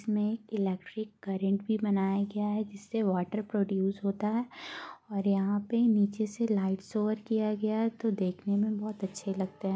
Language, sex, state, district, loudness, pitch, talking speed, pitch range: Hindi, female, Bihar, Gaya, -31 LUFS, 210 Hz, 190 wpm, 195-215 Hz